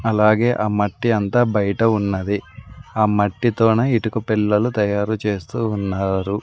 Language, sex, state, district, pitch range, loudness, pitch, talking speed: Telugu, male, Andhra Pradesh, Sri Satya Sai, 100-115 Hz, -19 LUFS, 105 Hz, 120 wpm